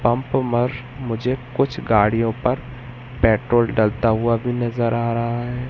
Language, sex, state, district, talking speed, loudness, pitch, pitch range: Hindi, male, Madhya Pradesh, Katni, 145 wpm, -20 LUFS, 120 Hz, 115-125 Hz